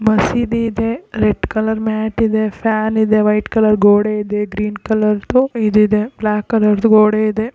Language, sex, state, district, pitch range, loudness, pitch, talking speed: Kannada, female, Karnataka, Raichur, 210-220 Hz, -15 LUFS, 215 Hz, 175 wpm